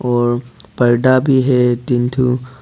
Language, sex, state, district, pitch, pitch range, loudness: Hindi, male, Arunachal Pradesh, Papum Pare, 125 Hz, 120-130 Hz, -15 LUFS